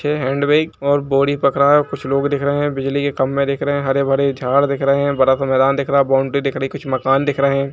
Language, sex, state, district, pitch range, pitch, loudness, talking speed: Hindi, male, Uttar Pradesh, Jalaun, 135-140 Hz, 140 Hz, -17 LUFS, 300 wpm